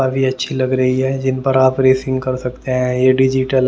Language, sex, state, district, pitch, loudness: Hindi, male, Haryana, Jhajjar, 130 Hz, -16 LUFS